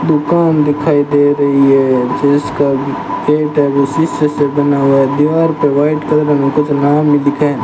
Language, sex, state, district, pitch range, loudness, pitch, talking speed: Hindi, male, Rajasthan, Bikaner, 140-150 Hz, -12 LUFS, 145 Hz, 165 wpm